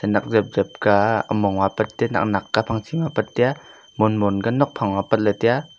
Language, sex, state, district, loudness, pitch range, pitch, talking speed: Wancho, male, Arunachal Pradesh, Longding, -21 LUFS, 100-120 Hz, 110 Hz, 270 wpm